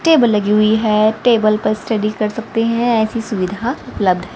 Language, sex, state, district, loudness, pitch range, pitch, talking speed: Hindi, female, Haryana, Rohtak, -16 LUFS, 210-230 Hz, 215 Hz, 180 wpm